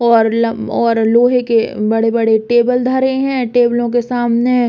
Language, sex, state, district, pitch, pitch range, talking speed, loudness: Bundeli, female, Uttar Pradesh, Hamirpur, 240 Hz, 230-245 Hz, 165 wpm, -14 LUFS